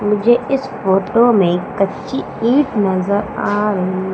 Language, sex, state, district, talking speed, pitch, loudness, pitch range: Hindi, female, Madhya Pradesh, Umaria, 130 wpm, 205 Hz, -16 LUFS, 190-235 Hz